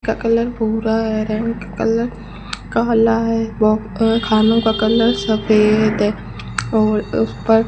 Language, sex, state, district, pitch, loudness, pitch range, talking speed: Hindi, female, Rajasthan, Bikaner, 220 Hz, -17 LUFS, 215-225 Hz, 140 wpm